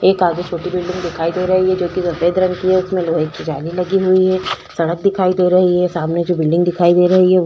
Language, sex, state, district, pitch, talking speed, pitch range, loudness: Hindi, female, Chhattisgarh, Korba, 180 Hz, 275 wpm, 170-185 Hz, -16 LUFS